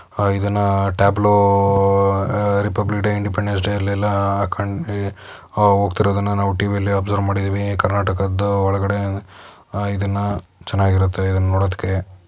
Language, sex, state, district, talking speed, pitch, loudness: Kannada, male, Karnataka, Dakshina Kannada, 115 wpm, 100 Hz, -19 LUFS